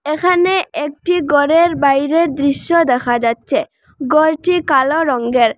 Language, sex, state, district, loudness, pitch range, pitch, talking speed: Bengali, female, Assam, Hailakandi, -14 LUFS, 275-335 Hz, 300 Hz, 130 wpm